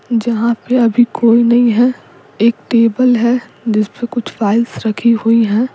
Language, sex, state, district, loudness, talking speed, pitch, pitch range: Hindi, female, Bihar, Patna, -13 LUFS, 165 wpm, 235 Hz, 225-240 Hz